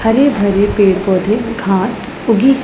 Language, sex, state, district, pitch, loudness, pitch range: Hindi, female, Punjab, Pathankot, 215 Hz, -14 LUFS, 195-230 Hz